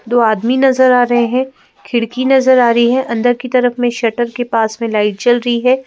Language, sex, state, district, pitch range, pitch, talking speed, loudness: Hindi, female, Madhya Pradesh, Bhopal, 235-255 Hz, 240 Hz, 235 wpm, -13 LUFS